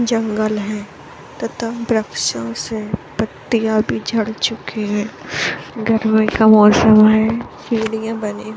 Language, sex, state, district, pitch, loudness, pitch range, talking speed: Hindi, female, Bihar, Saran, 220 Hz, -17 LUFS, 215-225 Hz, 125 wpm